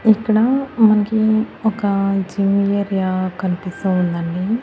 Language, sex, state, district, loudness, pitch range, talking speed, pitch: Telugu, female, Andhra Pradesh, Annamaya, -18 LUFS, 185-220 Hz, 90 wpm, 200 Hz